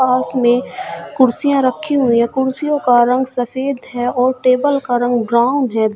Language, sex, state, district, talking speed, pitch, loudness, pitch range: Hindi, female, Uttar Pradesh, Shamli, 170 wpm, 255 Hz, -15 LUFS, 245-270 Hz